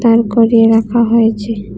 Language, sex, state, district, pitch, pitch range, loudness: Bengali, female, Tripura, West Tripura, 230 Hz, 225-230 Hz, -11 LUFS